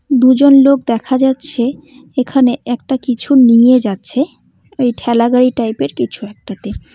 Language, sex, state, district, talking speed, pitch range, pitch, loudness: Bengali, female, West Bengal, Cooch Behar, 120 wpm, 235-270 Hz, 255 Hz, -12 LUFS